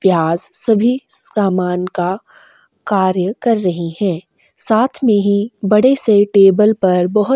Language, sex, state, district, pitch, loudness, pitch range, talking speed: Hindi, female, Chhattisgarh, Kabirdham, 200 Hz, -15 LUFS, 185-220 Hz, 140 wpm